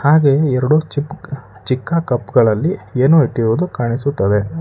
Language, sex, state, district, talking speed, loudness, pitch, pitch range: Kannada, male, Karnataka, Bangalore, 115 wpm, -16 LUFS, 140 Hz, 120-155 Hz